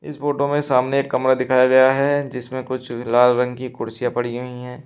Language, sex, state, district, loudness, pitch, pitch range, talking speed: Hindi, male, Uttar Pradesh, Shamli, -19 LUFS, 130 Hz, 125-135 Hz, 225 wpm